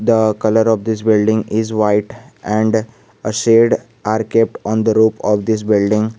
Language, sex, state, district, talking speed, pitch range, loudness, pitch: English, male, Jharkhand, Garhwa, 165 wpm, 105-110 Hz, -15 LUFS, 110 Hz